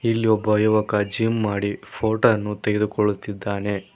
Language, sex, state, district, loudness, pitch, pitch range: Kannada, male, Karnataka, Koppal, -22 LUFS, 105 Hz, 100-110 Hz